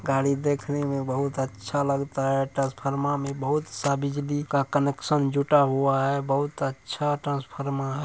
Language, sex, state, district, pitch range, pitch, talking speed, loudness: Hindi, male, Bihar, Darbhanga, 135-145 Hz, 140 Hz, 155 wpm, -26 LUFS